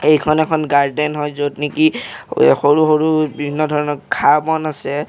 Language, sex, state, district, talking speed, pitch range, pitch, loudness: Assamese, male, Assam, Kamrup Metropolitan, 155 wpm, 145-155 Hz, 150 Hz, -16 LUFS